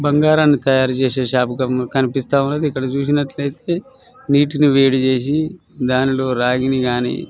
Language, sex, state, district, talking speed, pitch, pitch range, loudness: Telugu, male, Telangana, Nalgonda, 115 wpm, 135 Hz, 130-145 Hz, -17 LUFS